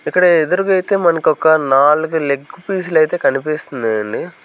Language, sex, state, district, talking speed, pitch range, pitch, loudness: Telugu, male, Andhra Pradesh, Sri Satya Sai, 135 wpm, 145-180 Hz, 160 Hz, -15 LUFS